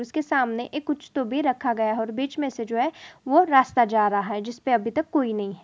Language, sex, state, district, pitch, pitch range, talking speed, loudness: Hindi, female, Maharashtra, Aurangabad, 250 Hz, 230-285 Hz, 275 wpm, -24 LUFS